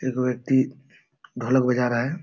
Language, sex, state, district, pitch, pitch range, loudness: Hindi, male, Jharkhand, Jamtara, 125 Hz, 125-130 Hz, -23 LUFS